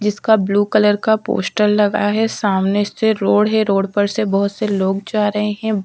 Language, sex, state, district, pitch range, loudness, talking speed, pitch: Hindi, female, Bihar, Patna, 200-215 Hz, -16 LUFS, 215 wpm, 210 Hz